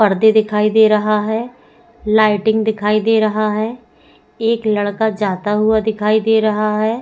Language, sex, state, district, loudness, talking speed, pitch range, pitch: Hindi, female, Goa, North and South Goa, -15 LUFS, 155 wpm, 210-220 Hz, 215 Hz